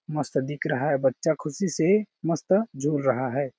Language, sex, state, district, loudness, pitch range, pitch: Hindi, male, Chhattisgarh, Balrampur, -25 LUFS, 140-165 Hz, 150 Hz